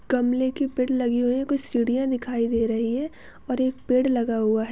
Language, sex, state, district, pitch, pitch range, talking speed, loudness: Hindi, female, Chhattisgarh, Bastar, 250 Hz, 235-260 Hz, 230 wpm, -24 LUFS